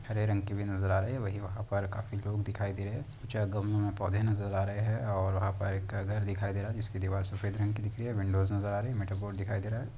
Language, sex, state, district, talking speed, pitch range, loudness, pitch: Hindi, male, Bihar, Lakhisarai, 325 wpm, 100-105 Hz, -34 LUFS, 100 Hz